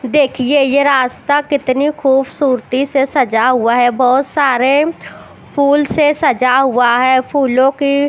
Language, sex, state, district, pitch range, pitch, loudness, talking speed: Hindi, female, Chandigarh, Chandigarh, 255-285 Hz, 270 Hz, -13 LUFS, 140 wpm